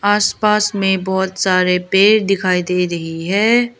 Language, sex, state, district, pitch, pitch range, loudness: Hindi, female, Arunachal Pradesh, Lower Dibang Valley, 190 Hz, 180-210 Hz, -15 LUFS